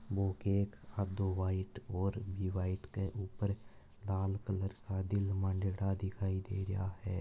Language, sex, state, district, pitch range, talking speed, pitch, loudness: Marwari, male, Rajasthan, Nagaur, 95-100 Hz, 150 wpm, 95 Hz, -38 LUFS